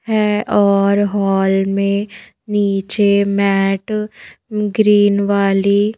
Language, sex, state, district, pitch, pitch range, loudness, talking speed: Hindi, female, Madhya Pradesh, Bhopal, 200 Hz, 200-210 Hz, -15 LUFS, 80 wpm